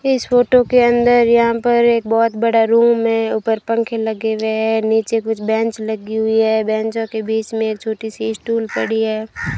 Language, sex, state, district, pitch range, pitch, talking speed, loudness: Hindi, female, Rajasthan, Bikaner, 220-230 Hz, 225 Hz, 200 wpm, -16 LUFS